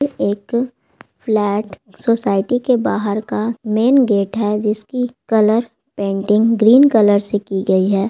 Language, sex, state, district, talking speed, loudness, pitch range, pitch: Hindi, female, Bihar, Gaya, 140 wpm, -16 LUFS, 205-240 Hz, 215 Hz